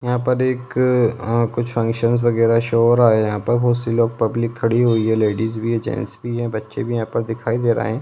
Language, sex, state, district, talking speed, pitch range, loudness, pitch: Hindi, male, Bihar, Vaishali, 255 wpm, 115-120 Hz, -19 LUFS, 115 Hz